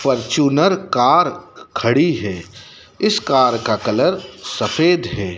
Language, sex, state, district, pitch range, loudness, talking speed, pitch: Hindi, male, Madhya Pradesh, Dhar, 115-175 Hz, -17 LUFS, 110 wpm, 140 Hz